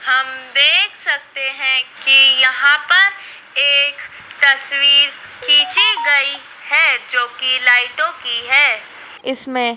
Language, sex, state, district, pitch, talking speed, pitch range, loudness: Hindi, female, Madhya Pradesh, Dhar, 270 Hz, 110 wpm, 255-285 Hz, -13 LUFS